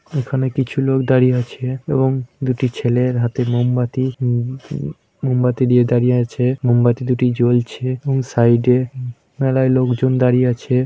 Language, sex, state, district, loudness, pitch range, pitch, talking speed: Bengali, male, West Bengal, Purulia, -17 LUFS, 125-130 Hz, 125 Hz, 150 wpm